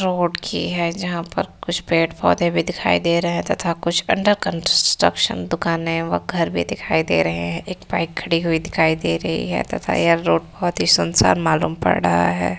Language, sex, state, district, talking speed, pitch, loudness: Hindi, female, Uttar Pradesh, Varanasi, 200 wpm, 160 Hz, -19 LUFS